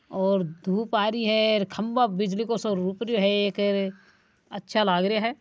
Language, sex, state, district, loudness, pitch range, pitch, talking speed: Marwari, male, Rajasthan, Nagaur, -25 LUFS, 195-220 Hz, 205 Hz, 165 wpm